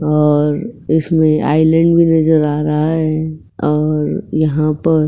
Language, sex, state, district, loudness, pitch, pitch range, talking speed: Hindi, female, Uttar Pradesh, Etah, -14 LUFS, 155 Hz, 150-160 Hz, 140 wpm